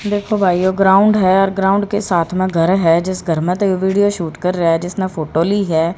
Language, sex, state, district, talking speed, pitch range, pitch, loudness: Hindi, female, Haryana, Rohtak, 240 wpm, 170-195 Hz, 185 Hz, -15 LUFS